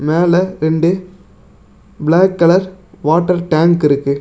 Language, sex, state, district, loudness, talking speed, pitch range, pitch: Tamil, male, Tamil Nadu, Namakkal, -14 LUFS, 100 wpm, 155-185 Hz, 170 Hz